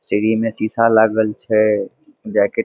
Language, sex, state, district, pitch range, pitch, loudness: Maithili, male, Bihar, Madhepura, 110-115 Hz, 110 Hz, -17 LUFS